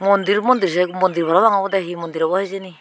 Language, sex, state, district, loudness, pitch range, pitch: Chakma, female, Tripura, Unakoti, -18 LUFS, 175-195 Hz, 190 Hz